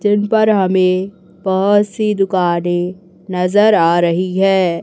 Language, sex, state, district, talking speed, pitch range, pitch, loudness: Hindi, female, Chhattisgarh, Raipur, 125 wpm, 180-205 Hz, 190 Hz, -15 LUFS